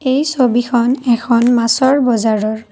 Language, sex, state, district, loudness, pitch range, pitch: Assamese, female, Assam, Kamrup Metropolitan, -14 LUFS, 230-260 Hz, 240 Hz